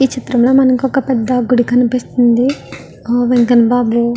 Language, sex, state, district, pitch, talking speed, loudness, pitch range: Telugu, female, Andhra Pradesh, Visakhapatnam, 245 Hz, 130 wpm, -13 LUFS, 240-255 Hz